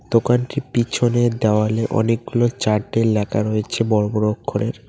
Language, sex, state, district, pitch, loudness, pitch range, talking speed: Bengali, male, West Bengal, Cooch Behar, 115 Hz, -19 LUFS, 105-120 Hz, 145 wpm